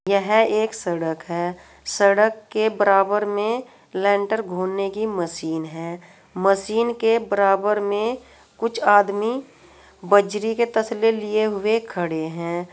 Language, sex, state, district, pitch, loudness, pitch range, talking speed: Hindi, female, Uttar Pradesh, Saharanpur, 205 Hz, -21 LUFS, 185-220 Hz, 125 wpm